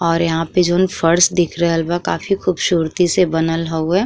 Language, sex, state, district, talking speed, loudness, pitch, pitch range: Bhojpuri, female, Uttar Pradesh, Ghazipur, 190 wpm, -16 LUFS, 170 Hz, 165-180 Hz